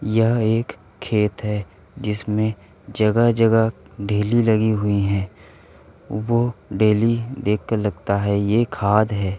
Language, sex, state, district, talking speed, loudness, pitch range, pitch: Hindi, male, Uttar Pradesh, Muzaffarnagar, 115 wpm, -20 LUFS, 100-115 Hz, 105 Hz